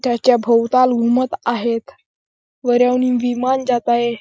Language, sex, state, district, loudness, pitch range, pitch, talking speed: Marathi, male, Maharashtra, Chandrapur, -17 LUFS, 235-255 Hz, 245 Hz, 130 wpm